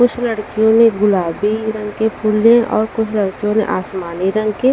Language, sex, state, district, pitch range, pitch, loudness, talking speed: Hindi, female, Haryana, Rohtak, 205-225 Hz, 215 Hz, -16 LUFS, 190 wpm